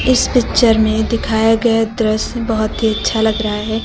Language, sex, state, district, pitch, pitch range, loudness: Hindi, female, Uttar Pradesh, Lucknow, 220 Hz, 220-230 Hz, -15 LUFS